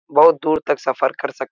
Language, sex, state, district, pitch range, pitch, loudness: Hindi, male, Uttar Pradesh, Etah, 135-155 Hz, 140 Hz, -18 LUFS